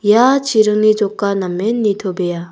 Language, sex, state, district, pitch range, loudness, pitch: Garo, female, Meghalaya, South Garo Hills, 190-215 Hz, -15 LUFS, 210 Hz